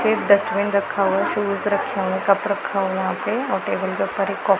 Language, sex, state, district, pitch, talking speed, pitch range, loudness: Hindi, female, Punjab, Pathankot, 200 Hz, 245 wpm, 195-200 Hz, -21 LUFS